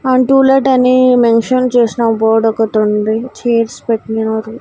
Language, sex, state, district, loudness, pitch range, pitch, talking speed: Telugu, female, Andhra Pradesh, Annamaya, -12 LUFS, 220-255 Hz, 230 Hz, 105 wpm